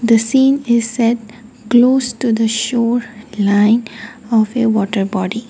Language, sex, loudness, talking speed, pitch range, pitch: English, female, -15 LUFS, 130 wpm, 220-240 Hz, 230 Hz